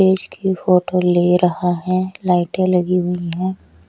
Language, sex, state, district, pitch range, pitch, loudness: Hindi, male, Odisha, Nuapada, 175-185 Hz, 180 Hz, -18 LUFS